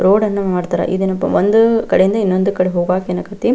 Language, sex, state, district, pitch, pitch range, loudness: Kannada, female, Karnataka, Belgaum, 190 Hz, 185-205 Hz, -15 LUFS